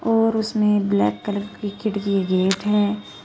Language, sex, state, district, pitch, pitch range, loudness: Hindi, female, Uttar Pradesh, Shamli, 205 Hz, 200-215 Hz, -21 LUFS